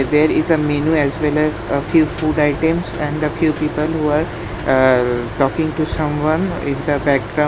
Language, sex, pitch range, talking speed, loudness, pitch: English, male, 140-155 Hz, 190 wpm, -17 LUFS, 150 Hz